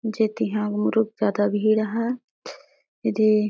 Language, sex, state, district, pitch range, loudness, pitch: Surgujia, female, Chhattisgarh, Sarguja, 210-220 Hz, -23 LUFS, 215 Hz